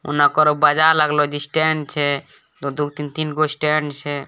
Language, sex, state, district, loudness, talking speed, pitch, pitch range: Maithili, male, Bihar, Bhagalpur, -18 LUFS, 125 wpm, 150 Hz, 145-155 Hz